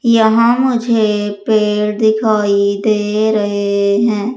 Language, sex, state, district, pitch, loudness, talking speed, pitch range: Hindi, female, Madhya Pradesh, Umaria, 215 Hz, -14 LUFS, 95 wpm, 205-225 Hz